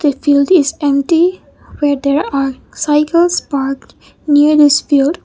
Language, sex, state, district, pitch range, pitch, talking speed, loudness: English, female, Mizoram, Aizawl, 280-310 Hz, 290 Hz, 135 wpm, -13 LUFS